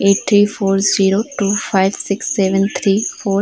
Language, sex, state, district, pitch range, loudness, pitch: Hindi, female, Uttar Pradesh, Varanasi, 195-205 Hz, -15 LUFS, 195 Hz